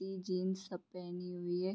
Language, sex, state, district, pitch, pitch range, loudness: Hindi, female, Bihar, Vaishali, 185 Hz, 180-190 Hz, -41 LUFS